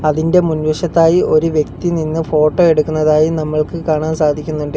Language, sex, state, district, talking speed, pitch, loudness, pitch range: Malayalam, male, Kerala, Kollam, 140 wpm, 155 Hz, -14 LUFS, 155-165 Hz